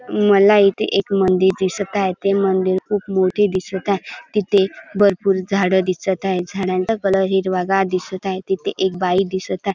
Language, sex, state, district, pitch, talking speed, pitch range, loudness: Marathi, male, Maharashtra, Dhule, 190 Hz, 165 wpm, 185-200 Hz, -18 LUFS